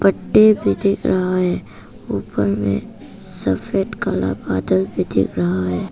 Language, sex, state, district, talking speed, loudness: Hindi, female, Arunachal Pradesh, Papum Pare, 140 wpm, -19 LUFS